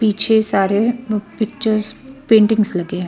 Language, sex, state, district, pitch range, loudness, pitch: Hindi, female, Bihar, Patna, 205-225 Hz, -16 LUFS, 215 Hz